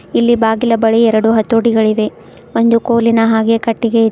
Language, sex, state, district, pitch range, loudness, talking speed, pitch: Kannada, female, Karnataka, Bidar, 225-230 Hz, -13 LUFS, 145 wpm, 230 Hz